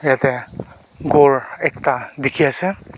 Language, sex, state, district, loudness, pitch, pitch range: Nagamese, male, Nagaland, Kohima, -17 LUFS, 140 Hz, 135-150 Hz